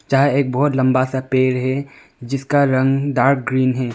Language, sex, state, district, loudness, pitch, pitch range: Hindi, male, Arunachal Pradesh, Longding, -17 LUFS, 135 Hz, 130-140 Hz